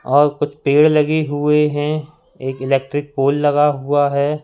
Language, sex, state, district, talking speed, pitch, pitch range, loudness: Hindi, male, Madhya Pradesh, Katni, 160 wpm, 145 Hz, 140-150 Hz, -17 LUFS